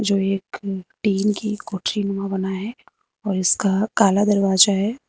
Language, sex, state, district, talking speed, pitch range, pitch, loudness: Hindi, female, Uttar Pradesh, Lucknow, 130 wpm, 195-210 Hz, 200 Hz, -20 LUFS